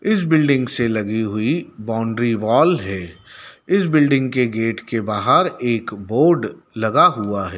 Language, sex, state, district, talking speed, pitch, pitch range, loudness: Hindi, male, Madhya Pradesh, Dhar, 150 wpm, 115 Hz, 105-140 Hz, -18 LUFS